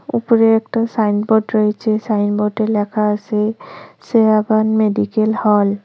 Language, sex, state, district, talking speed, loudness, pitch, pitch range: Bengali, female, West Bengal, Cooch Behar, 125 wpm, -16 LUFS, 215 Hz, 210-220 Hz